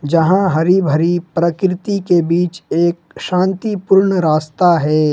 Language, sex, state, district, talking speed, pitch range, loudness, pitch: Hindi, male, Jharkhand, Ranchi, 115 wpm, 165-190 Hz, -15 LUFS, 175 Hz